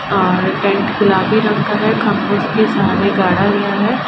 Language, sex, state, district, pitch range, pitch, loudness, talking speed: Hindi, female, Uttar Pradesh, Ghazipur, 195-215 Hz, 205 Hz, -14 LUFS, 175 wpm